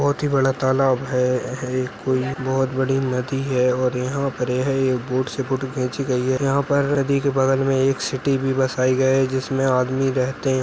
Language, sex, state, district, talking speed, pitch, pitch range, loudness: Hindi, male, Uttarakhand, Uttarkashi, 215 wpm, 130 Hz, 130-135 Hz, -21 LUFS